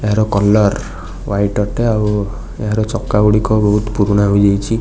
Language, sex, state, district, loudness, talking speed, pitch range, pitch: Odia, male, Odisha, Nuapada, -15 LUFS, 135 wpm, 100-110 Hz, 105 Hz